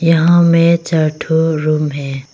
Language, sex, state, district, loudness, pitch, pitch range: Hindi, female, Arunachal Pradesh, Longding, -13 LUFS, 160 Hz, 155-165 Hz